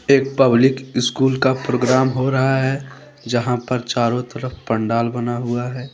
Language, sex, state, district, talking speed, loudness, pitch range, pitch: Hindi, male, Jharkhand, Deoghar, 160 wpm, -19 LUFS, 120-135 Hz, 125 Hz